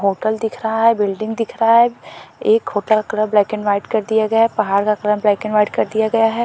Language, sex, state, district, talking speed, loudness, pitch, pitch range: Hindi, female, Uttarakhand, Tehri Garhwal, 270 wpm, -17 LUFS, 220 Hz, 210-225 Hz